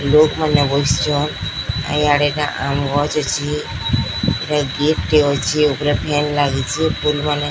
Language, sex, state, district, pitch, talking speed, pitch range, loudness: Odia, female, Odisha, Sambalpur, 145 Hz, 150 wpm, 140-150 Hz, -17 LUFS